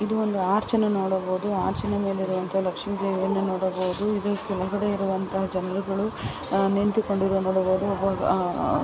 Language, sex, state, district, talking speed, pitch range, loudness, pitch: Kannada, female, Karnataka, Chamarajanagar, 130 wpm, 190-205 Hz, -25 LUFS, 195 Hz